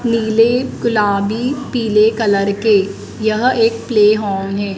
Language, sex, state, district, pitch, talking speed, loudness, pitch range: Hindi, female, Madhya Pradesh, Dhar, 215 Hz, 125 wpm, -15 LUFS, 205-230 Hz